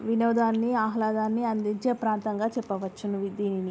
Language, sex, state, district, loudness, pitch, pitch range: Telugu, female, Andhra Pradesh, Srikakulam, -27 LUFS, 220 Hz, 205-230 Hz